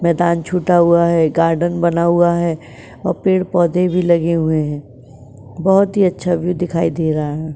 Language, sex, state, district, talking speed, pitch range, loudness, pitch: Hindi, female, Maharashtra, Chandrapur, 185 wpm, 160-175 Hz, -16 LUFS, 170 Hz